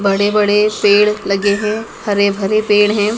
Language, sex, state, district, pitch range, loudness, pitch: Hindi, female, Madhya Pradesh, Dhar, 200-210 Hz, -14 LUFS, 205 Hz